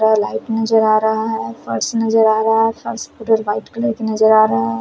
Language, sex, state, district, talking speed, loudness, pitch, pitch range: Hindi, female, Bihar, Kaimur, 250 wpm, -16 LUFS, 220 Hz, 210-225 Hz